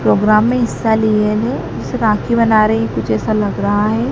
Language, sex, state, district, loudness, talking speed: Hindi, male, Madhya Pradesh, Dhar, -15 LUFS, 220 wpm